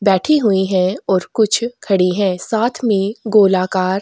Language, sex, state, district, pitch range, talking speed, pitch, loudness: Hindi, female, Chhattisgarh, Korba, 190-220 Hz, 165 wpm, 195 Hz, -16 LUFS